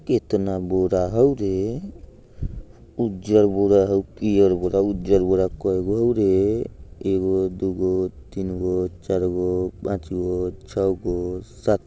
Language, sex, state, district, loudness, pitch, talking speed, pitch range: Bajjika, male, Bihar, Vaishali, -22 LUFS, 95 Hz, 110 wpm, 90-100 Hz